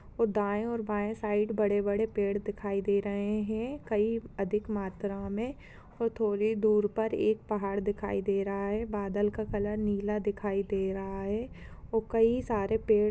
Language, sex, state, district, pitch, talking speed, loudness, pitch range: Hindi, female, Uttarakhand, Uttarkashi, 210 Hz, 175 wpm, -31 LUFS, 200-220 Hz